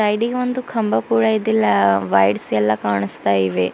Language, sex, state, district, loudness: Kannada, female, Karnataka, Bidar, -18 LUFS